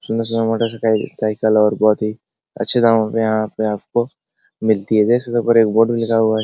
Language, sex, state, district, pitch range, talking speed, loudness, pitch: Hindi, male, Bihar, Araria, 110-115 Hz, 215 wpm, -17 LUFS, 110 Hz